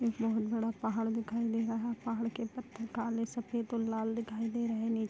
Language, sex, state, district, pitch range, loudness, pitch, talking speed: Hindi, female, Bihar, Sitamarhi, 225-230 Hz, -35 LUFS, 230 Hz, 245 wpm